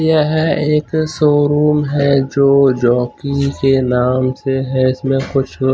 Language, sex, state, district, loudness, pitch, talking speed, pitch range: Hindi, male, Chandigarh, Chandigarh, -14 LUFS, 140 Hz, 125 wpm, 130-150 Hz